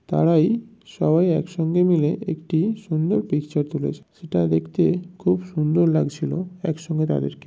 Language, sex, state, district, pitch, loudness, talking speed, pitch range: Bengali, male, West Bengal, North 24 Parganas, 160 Hz, -22 LUFS, 120 wpm, 155-180 Hz